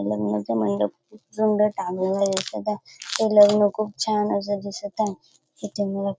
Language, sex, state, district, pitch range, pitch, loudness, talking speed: Marathi, female, Maharashtra, Dhule, 185-210 Hz, 205 Hz, -23 LUFS, 165 wpm